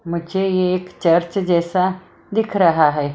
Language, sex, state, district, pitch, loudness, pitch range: Hindi, female, Maharashtra, Mumbai Suburban, 180 Hz, -18 LUFS, 170-190 Hz